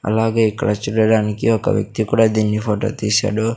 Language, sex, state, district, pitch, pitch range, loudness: Telugu, male, Andhra Pradesh, Sri Satya Sai, 110 Hz, 105-115 Hz, -17 LUFS